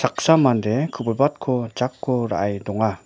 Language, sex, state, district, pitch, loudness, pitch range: Garo, male, Meghalaya, West Garo Hills, 120 Hz, -21 LUFS, 110-130 Hz